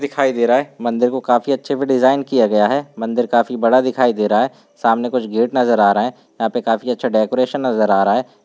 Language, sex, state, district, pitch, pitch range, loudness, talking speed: Hindi, male, Uttar Pradesh, Varanasi, 120 Hz, 115-130 Hz, -17 LUFS, 255 wpm